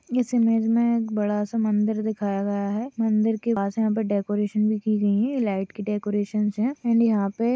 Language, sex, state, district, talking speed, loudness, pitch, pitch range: Hindi, female, Bihar, Purnia, 215 wpm, -24 LUFS, 215 Hz, 205-230 Hz